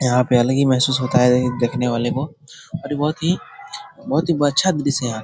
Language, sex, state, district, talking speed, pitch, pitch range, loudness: Hindi, male, Bihar, Jahanabad, 195 wpm, 135 Hz, 125-150 Hz, -19 LUFS